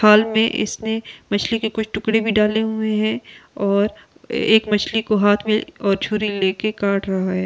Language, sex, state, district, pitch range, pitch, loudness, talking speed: Hindi, female, Delhi, New Delhi, 205-220 Hz, 215 Hz, -19 LUFS, 195 wpm